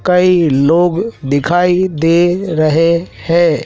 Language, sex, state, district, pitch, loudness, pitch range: Hindi, male, Madhya Pradesh, Dhar, 170 Hz, -12 LUFS, 160-180 Hz